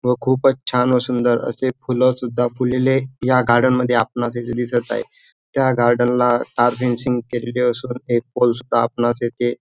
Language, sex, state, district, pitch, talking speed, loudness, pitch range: Marathi, male, Maharashtra, Dhule, 125 Hz, 175 wpm, -19 LUFS, 120-125 Hz